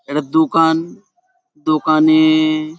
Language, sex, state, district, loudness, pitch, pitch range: Bengali, male, West Bengal, Paschim Medinipur, -14 LUFS, 155 Hz, 155-165 Hz